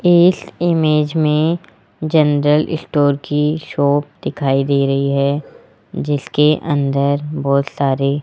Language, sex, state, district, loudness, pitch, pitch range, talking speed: Hindi, male, Rajasthan, Jaipur, -16 LUFS, 145 Hz, 140-155 Hz, 110 wpm